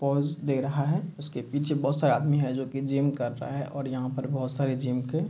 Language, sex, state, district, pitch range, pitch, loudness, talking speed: Hindi, male, Bihar, Kishanganj, 130-145 Hz, 140 Hz, -28 LUFS, 285 wpm